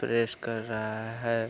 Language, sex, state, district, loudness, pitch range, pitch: Hindi, male, Bihar, Araria, -32 LUFS, 110-115 Hz, 115 Hz